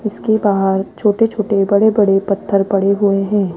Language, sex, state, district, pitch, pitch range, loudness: Hindi, female, Rajasthan, Jaipur, 200 Hz, 195-210 Hz, -15 LUFS